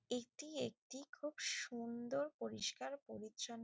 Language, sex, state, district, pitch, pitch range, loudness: Bengali, female, West Bengal, Jalpaiguri, 250 Hz, 235-285 Hz, -46 LUFS